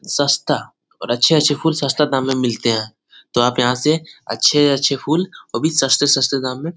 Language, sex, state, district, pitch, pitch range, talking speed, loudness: Hindi, male, Bihar, Jahanabad, 140 Hz, 125-155 Hz, 185 wpm, -17 LUFS